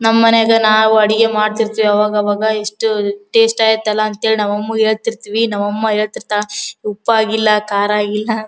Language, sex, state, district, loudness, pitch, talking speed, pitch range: Kannada, female, Karnataka, Bellary, -14 LUFS, 215 Hz, 150 wpm, 210-220 Hz